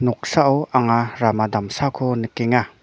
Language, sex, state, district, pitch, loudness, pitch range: Garo, male, Meghalaya, North Garo Hills, 120 Hz, -20 LUFS, 115-130 Hz